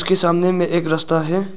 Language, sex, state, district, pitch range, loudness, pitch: Hindi, male, Arunachal Pradesh, Lower Dibang Valley, 165-185 Hz, -17 LUFS, 170 Hz